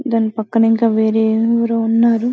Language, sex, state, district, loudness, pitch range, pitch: Telugu, female, Telangana, Karimnagar, -15 LUFS, 220-230 Hz, 225 Hz